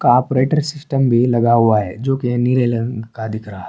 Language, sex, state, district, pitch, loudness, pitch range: Urdu, male, Uttar Pradesh, Budaun, 120 Hz, -17 LUFS, 115-130 Hz